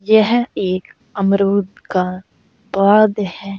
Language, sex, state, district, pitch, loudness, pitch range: Hindi, female, Uttar Pradesh, Saharanpur, 200 Hz, -16 LUFS, 190-215 Hz